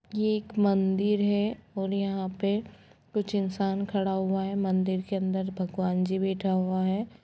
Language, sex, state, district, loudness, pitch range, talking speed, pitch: Hindi, female, Jharkhand, Sahebganj, -28 LUFS, 190-205 Hz, 165 wpm, 195 Hz